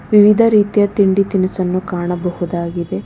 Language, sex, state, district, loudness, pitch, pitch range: Kannada, female, Karnataka, Bangalore, -15 LUFS, 190 Hz, 175-205 Hz